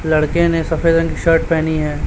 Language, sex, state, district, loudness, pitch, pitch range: Hindi, male, Chhattisgarh, Raipur, -16 LUFS, 165 Hz, 160-165 Hz